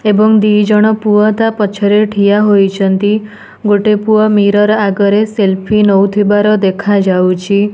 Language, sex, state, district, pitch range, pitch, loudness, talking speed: Odia, female, Odisha, Nuapada, 200-215 Hz, 205 Hz, -10 LUFS, 115 wpm